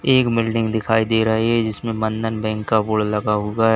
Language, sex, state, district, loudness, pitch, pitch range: Hindi, male, Uttar Pradesh, Lalitpur, -19 LUFS, 110 Hz, 110-115 Hz